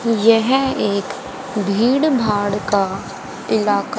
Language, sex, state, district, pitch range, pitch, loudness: Hindi, female, Haryana, Rohtak, 200-255 Hz, 215 Hz, -18 LUFS